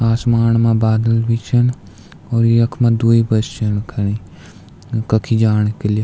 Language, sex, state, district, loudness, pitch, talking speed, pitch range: Garhwali, male, Uttarakhand, Tehri Garhwal, -16 LUFS, 115 Hz, 150 wpm, 110-115 Hz